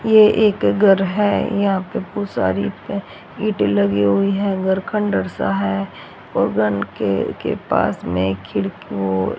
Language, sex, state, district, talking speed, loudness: Hindi, female, Haryana, Rohtak, 155 wpm, -19 LUFS